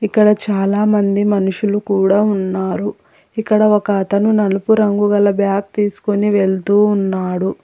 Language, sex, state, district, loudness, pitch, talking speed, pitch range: Telugu, female, Telangana, Hyderabad, -15 LUFS, 205 Hz, 120 wpm, 195-210 Hz